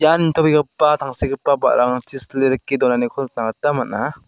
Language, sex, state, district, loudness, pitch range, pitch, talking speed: Garo, male, Meghalaya, South Garo Hills, -18 LUFS, 125-150 Hz, 135 Hz, 140 wpm